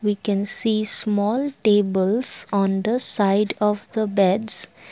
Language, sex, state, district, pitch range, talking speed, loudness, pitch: English, female, Assam, Kamrup Metropolitan, 200-220 Hz, 135 wpm, -16 LUFS, 210 Hz